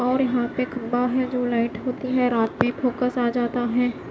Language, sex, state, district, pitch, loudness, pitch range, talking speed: Hindi, female, Maharashtra, Mumbai Suburban, 245 Hz, -23 LUFS, 240-255 Hz, 220 wpm